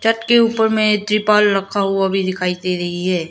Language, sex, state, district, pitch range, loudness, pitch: Hindi, female, Arunachal Pradesh, Lower Dibang Valley, 185-215 Hz, -16 LUFS, 200 Hz